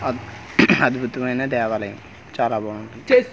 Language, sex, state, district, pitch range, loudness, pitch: Telugu, male, Andhra Pradesh, Manyam, 105-125 Hz, -20 LUFS, 115 Hz